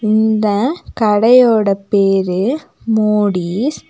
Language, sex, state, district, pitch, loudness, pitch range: Tamil, female, Tamil Nadu, Nilgiris, 215 Hz, -14 LUFS, 200-230 Hz